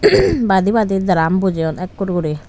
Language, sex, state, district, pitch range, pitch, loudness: Chakma, female, Tripura, Unakoti, 175-210 Hz, 190 Hz, -16 LUFS